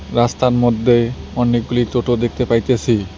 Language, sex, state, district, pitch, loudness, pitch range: Bengali, male, West Bengal, Cooch Behar, 120 Hz, -16 LUFS, 115-120 Hz